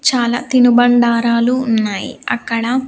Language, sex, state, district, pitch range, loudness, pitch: Telugu, female, Andhra Pradesh, Sri Satya Sai, 235-250 Hz, -14 LUFS, 240 Hz